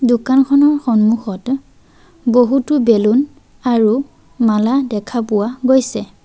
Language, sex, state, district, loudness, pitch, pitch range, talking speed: Assamese, female, Assam, Sonitpur, -15 LUFS, 245 Hz, 220-265 Hz, 85 wpm